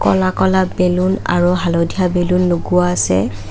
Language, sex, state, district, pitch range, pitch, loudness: Assamese, female, Assam, Kamrup Metropolitan, 170-185 Hz, 180 Hz, -15 LUFS